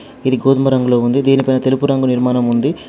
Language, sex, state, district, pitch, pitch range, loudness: Telugu, male, Telangana, Adilabad, 130 Hz, 125-135 Hz, -14 LUFS